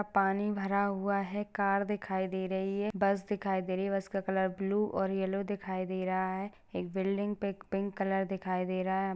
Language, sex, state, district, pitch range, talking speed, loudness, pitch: Hindi, female, Maharashtra, Sindhudurg, 190-200 Hz, 225 wpm, -33 LUFS, 195 Hz